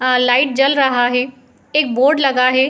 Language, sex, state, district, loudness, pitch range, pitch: Hindi, female, Uttar Pradesh, Jyotiba Phule Nagar, -14 LUFS, 250-275 Hz, 255 Hz